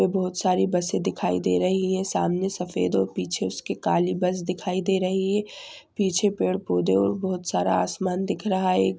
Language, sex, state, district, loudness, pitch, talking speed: Hindi, female, Jharkhand, Sahebganj, -24 LUFS, 185 Hz, 185 wpm